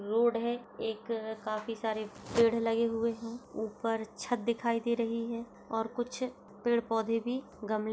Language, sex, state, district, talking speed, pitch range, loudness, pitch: Hindi, female, Bihar, Muzaffarpur, 175 wpm, 220-235 Hz, -33 LUFS, 230 Hz